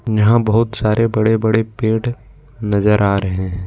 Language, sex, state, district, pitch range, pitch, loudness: Hindi, male, Jharkhand, Ranchi, 105-115 Hz, 110 Hz, -16 LUFS